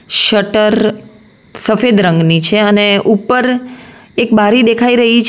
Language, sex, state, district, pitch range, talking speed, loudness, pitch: Gujarati, female, Gujarat, Valsad, 210-235 Hz, 125 wpm, -11 LUFS, 220 Hz